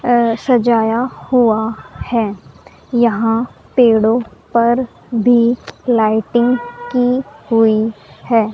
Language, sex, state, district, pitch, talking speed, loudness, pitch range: Hindi, female, Haryana, Rohtak, 235 Hz, 75 wpm, -15 LUFS, 220-245 Hz